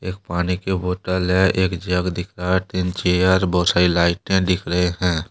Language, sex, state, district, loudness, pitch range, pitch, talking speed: Hindi, male, Jharkhand, Deoghar, -20 LUFS, 90-95 Hz, 90 Hz, 205 wpm